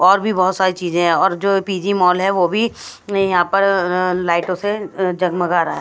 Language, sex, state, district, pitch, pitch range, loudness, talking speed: Hindi, female, Bihar, Katihar, 185 Hz, 180-195 Hz, -17 LUFS, 195 wpm